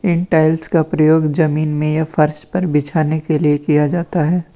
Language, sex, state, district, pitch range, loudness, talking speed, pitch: Hindi, male, Uttar Pradesh, Lalitpur, 150-165 Hz, -16 LUFS, 195 wpm, 155 Hz